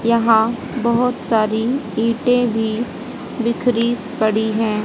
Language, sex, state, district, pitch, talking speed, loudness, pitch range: Hindi, female, Haryana, Jhajjar, 235 Hz, 100 wpm, -18 LUFS, 220-245 Hz